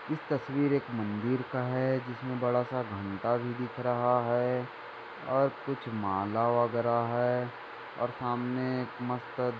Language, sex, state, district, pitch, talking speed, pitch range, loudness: Hindi, male, Maharashtra, Dhule, 125 Hz, 150 wpm, 120-130 Hz, -31 LUFS